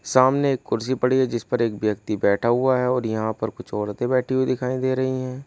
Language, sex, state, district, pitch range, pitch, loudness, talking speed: Hindi, male, Uttar Pradesh, Saharanpur, 110-130 Hz, 125 Hz, -22 LUFS, 250 wpm